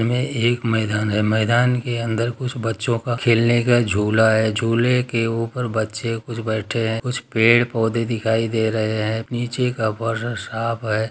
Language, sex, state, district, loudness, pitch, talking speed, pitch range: Hindi, male, Bihar, Darbhanga, -20 LUFS, 115 Hz, 165 wpm, 110-120 Hz